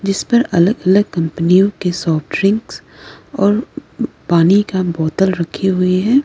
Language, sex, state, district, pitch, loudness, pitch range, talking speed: Hindi, female, Arunachal Pradesh, Lower Dibang Valley, 190 Hz, -15 LUFS, 175-200 Hz, 145 wpm